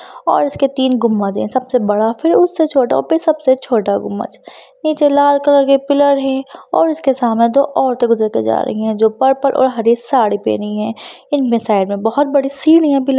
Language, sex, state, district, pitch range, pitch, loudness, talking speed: Hindi, female, Bihar, Lakhisarai, 225-285 Hz, 265 Hz, -14 LUFS, 205 wpm